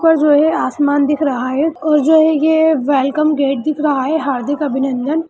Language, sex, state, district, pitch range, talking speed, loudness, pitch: Hindi, female, Bihar, Gaya, 275-315 Hz, 205 wpm, -14 LUFS, 295 Hz